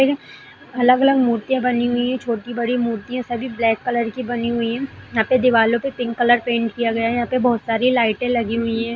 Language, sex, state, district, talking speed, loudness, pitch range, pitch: Hindi, female, Bihar, Madhepura, 215 wpm, -19 LUFS, 230-250 Hz, 240 Hz